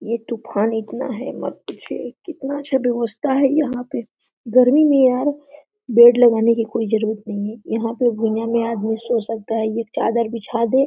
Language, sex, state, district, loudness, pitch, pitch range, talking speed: Hindi, female, Jharkhand, Sahebganj, -19 LUFS, 235 Hz, 225-260 Hz, 195 wpm